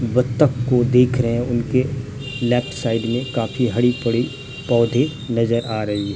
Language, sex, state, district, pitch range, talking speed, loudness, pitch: Hindi, male, Bihar, Katihar, 115-130 Hz, 155 wpm, -19 LUFS, 120 Hz